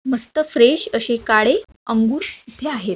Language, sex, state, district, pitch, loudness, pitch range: Marathi, female, Maharashtra, Aurangabad, 245 Hz, -18 LUFS, 230-305 Hz